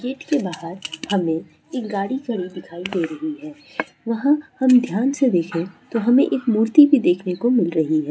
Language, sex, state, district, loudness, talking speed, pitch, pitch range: Hindi, female, Andhra Pradesh, Guntur, -20 LUFS, 190 wpm, 225 Hz, 175-265 Hz